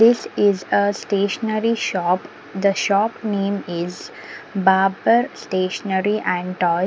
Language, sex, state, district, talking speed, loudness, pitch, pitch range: English, female, Punjab, Pathankot, 115 wpm, -20 LUFS, 200 Hz, 190-220 Hz